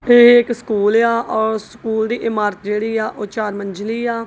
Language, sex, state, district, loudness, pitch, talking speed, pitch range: Punjabi, female, Punjab, Kapurthala, -17 LUFS, 220 Hz, 180 wpm, 210-235 Hz